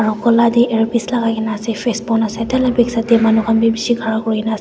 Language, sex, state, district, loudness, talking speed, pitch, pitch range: Nagamese, female, Nagaland, Dimapur, -16 LUFS, 325 wpm, 225 Hz, 220-235 Hz